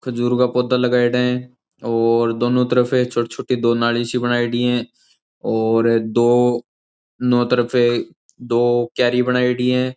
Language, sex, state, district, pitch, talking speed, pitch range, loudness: Rajasthani, male, Rajasthan, Churu, 120 Hz, 140 wpm, 120-125 Hz, -18 LUFS